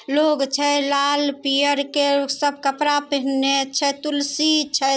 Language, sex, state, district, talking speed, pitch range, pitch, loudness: Maithili, female, Bihar, Samastipur, 145 wpm, 275-290 Hz, 285 Hz, -20 LUFS